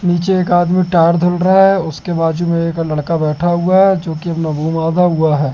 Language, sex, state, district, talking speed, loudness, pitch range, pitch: Hindi, male, Madhya Pradesh, Katni, 205 wpm, -14 LUFS, 160-180 Hz, 170 Hz